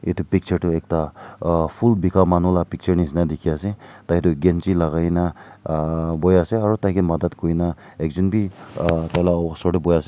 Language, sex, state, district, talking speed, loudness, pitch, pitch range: Nagamese, male, Nagaland, Kohima, 195 wpm, -20 LUFS, 85 Hz, 85-95 Hz